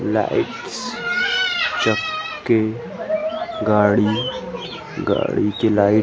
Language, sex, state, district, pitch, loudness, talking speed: Chhattisgarhi, male, Chhattisgarh, Rajnandgaon, 145 Hz, -20 LUFS, 70 wpm